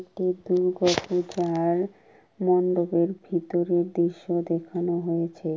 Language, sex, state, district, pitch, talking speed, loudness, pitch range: Bengali, female, West Bengal, Kolkata, 175 Hz, 65 wpm, -25 LUFS, 170-180 Hz